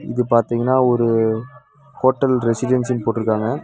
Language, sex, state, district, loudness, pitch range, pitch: Tamil, male, Tamil Nadu, Nilgiris, -18 LUFS, 115-130 Hz, 120 Hz